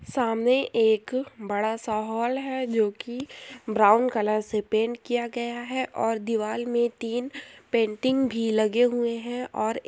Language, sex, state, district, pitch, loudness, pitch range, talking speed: Hindi, female, Uttar Pradesh, Jyotiba Phule Nagar, 235 Hz, -26 LUFS, 220-250 Hz, 160 wpm